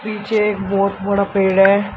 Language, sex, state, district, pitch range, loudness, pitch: Hindi, male, Uttar Pradesh, Shamli, 195-210 Hz, -16 LUFS, 200 Hz